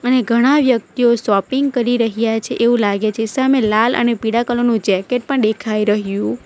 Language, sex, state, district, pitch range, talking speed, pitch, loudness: Gujarati, female, Gujarat, Valsad, 215-245 Hz, 185 wpm, 230 Hz, -16 LUFS